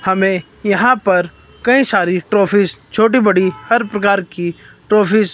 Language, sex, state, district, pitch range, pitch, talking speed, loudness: Hindi, male, Himachal Pradesh, Shimla, 185-215 Hz, 200 Hz, 145 wpm, -14 LUFS